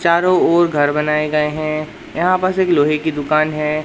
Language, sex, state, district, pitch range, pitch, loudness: Hindi, male, Madhya Pradesh, Katni, 150-170 Hz, 155 Hz, -16 LUFS